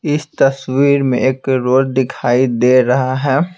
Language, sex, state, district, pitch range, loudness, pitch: Hindi, male, Bihar, Patna, 130-135 Hz, -14 LUFS, 130 Hz